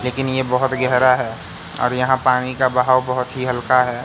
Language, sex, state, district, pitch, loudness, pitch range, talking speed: Hindi, male, Madhya Pradesh, Katni, 125 Hz, -18 LUFS, 125-130 Hz, 205 wpm